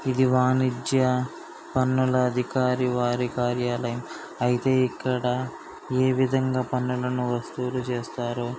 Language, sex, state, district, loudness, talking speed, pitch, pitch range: Telugu, male, Andhra Pradesh, Srikakulam, -25 LUFS, 90 wpm, 125 Hz, 125-130 Hz